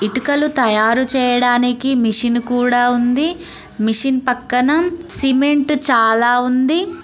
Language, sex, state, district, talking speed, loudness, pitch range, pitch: Telugu, female, Telangana, Mahabubabad, 95 wpm, -15 LUFS, 245-285 Hz, 250 Hz